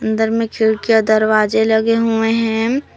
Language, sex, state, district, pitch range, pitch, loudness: Hindi, female, Jharkhand, Palamu, 220-230 Hz, 220 Hz, -15 LUFS